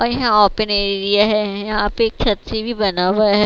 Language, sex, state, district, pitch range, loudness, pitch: Hindi, female, Bihar, West Champaran, 205-215 Hz, -17 LUFS, 210 Hz